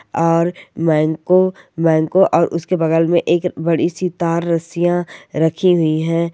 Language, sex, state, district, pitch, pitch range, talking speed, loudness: Hindi, male, Bihar, Sitamarhi, 170 Hz, 160-175 Hz, 140 wpm, -16 LUFS